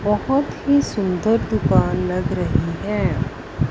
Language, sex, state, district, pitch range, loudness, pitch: Hindi, female, Punjab, Fazilka, 140-210 Hz, -20 LUFS, 180 Hz